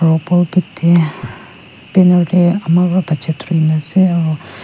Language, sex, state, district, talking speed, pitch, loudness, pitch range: Nagamese, female, Nagaland, Kohima, 115 wpm, 170 Hz, -14 LUFS, 155-180 Hz